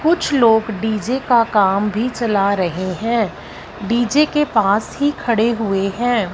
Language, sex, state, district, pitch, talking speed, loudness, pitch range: Hindi, female, Punjab, Fazilka, 225 Hz, 150 wpm, -17 LUFS, 205-245 Hz